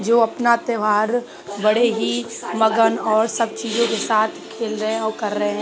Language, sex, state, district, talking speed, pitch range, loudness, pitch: Hindi, female, Uttar Pradesh, Hamirpur, 190 wpm, 215-230 Hz, -20 LUFS, 220 Hz